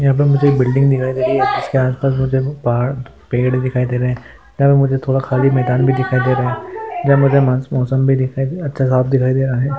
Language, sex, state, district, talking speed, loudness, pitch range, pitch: Hindi, male, Maharashtra, Solapur, 245 wpm, -16 LUFS, 130-135 Hz, 130 Hz